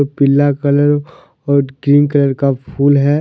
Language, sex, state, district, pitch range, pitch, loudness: Hindi, male, Jharkhand, Deoghar, 140-145 Hz, 140 Hz, -13 LUFS